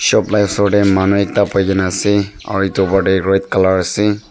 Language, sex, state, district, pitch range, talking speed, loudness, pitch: Nagamese, male, Nagaland, Dimapur, 95-100 Hz, 210 wpm, -14 LUFS, 95 Hz